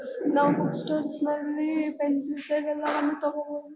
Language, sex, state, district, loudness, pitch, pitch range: Kannada, female, Karnataka, Bellary, -26 LUFS, 295 Hz, 290-300 Hz